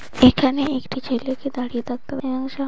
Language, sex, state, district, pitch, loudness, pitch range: Bengali, female, West Bengal, North 24 Parganas, 260 Hz, -22 LUFS, 250-275 Hz